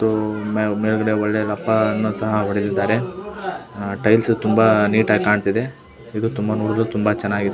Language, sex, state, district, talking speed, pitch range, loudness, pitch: Kannada, male, Karnataka, Belgaum, 125 wpm, 105-110 Hz, -19 LUFS, 110 Hz